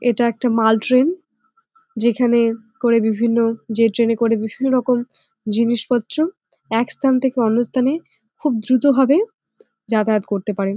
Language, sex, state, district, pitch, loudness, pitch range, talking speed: Bengali, female, West Bengal, Jalpaiguri, 235 Hz, -18 LUFS, 225-265 Hz, 150 wpm